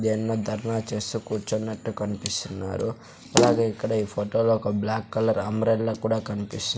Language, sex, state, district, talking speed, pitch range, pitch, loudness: Telugu, male, Andhra Pradesh, Sri Satya Sai, 140 wpm, 105-110 Hz, 110 Hz, -26 LUFS